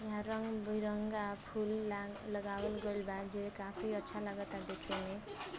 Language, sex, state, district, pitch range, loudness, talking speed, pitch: Bhojpuri, female, Uttar Pradesh, Varanasi, 200-215 Hz, -41 LUFS, 140 wpm, 205 Hz